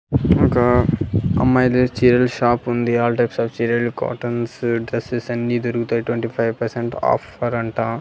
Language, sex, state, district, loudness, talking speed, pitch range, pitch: Telugu, male, Andhra Pradesh, Annamaya, -19 LUFS, 125 wpm, 115-120 Hz, 120 Hz